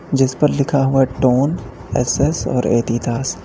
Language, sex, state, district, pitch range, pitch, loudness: Hindi, male, Uttar Pradesh, Lalitpur, 120-140 Hz, 130 Hz, -17 LUFS